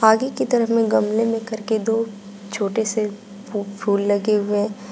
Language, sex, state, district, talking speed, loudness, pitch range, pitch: Hindi, female, Uttar Pradesh, Shamli, 185 wpm, -21 LUFS, 205-225 Hz, 215 Hz